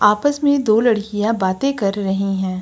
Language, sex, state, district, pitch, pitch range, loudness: Hindi, female, Uttar Pradesh, Lucknow, 210 Hz, 195-240 Hz, -18 LUFS